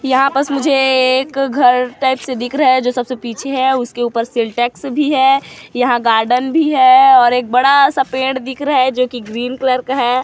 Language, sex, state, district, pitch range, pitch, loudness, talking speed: Hindi, female, Chhattisgarh, Kabirdham, 245-275 Hz, 260 Hz, -14 LUFS, 205 wpm